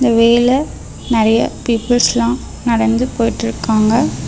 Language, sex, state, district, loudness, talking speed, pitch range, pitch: Tamil, female, Tamil Nadu, Namakkal, -14 LUFS, 100 wpm, 225-245 Hz, 235 Hz